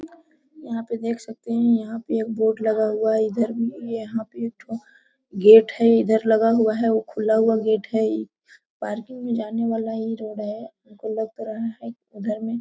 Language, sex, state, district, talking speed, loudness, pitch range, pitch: Hindi, female, Jharkhand, Sahebganj, 205 wpm, -22 LUFS, 220-230 Hz, 225 Hz